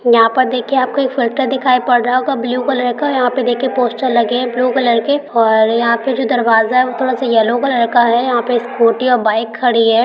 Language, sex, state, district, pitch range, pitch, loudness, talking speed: Hindi, female, Rajasthan, Nagaur, 235-255 Hz, 245 Hz, -14 LUFS, 245 wpm